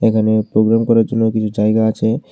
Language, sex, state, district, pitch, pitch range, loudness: Bengali, male, Tripura, West Tripura, 110 Hz, 110-115 Hz, -15 LUFS